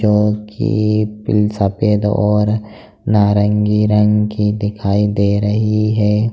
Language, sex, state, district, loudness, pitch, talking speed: Hindi, male, Bihar, Jahanabad, -15 LUFS, 105 Hz, 105 wpm